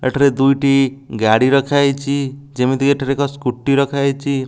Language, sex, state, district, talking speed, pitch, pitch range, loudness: Odia, male, Odisha, Nuapada, 175 wpm, 140 Hz, 130-140 Hz, -16 LUFS